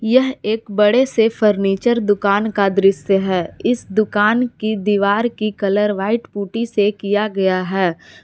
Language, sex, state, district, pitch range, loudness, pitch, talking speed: Hindi, female, Jharkhand, Palamu, 200-225 Hz, -17 LUFS, 210 Hz, 155 wpm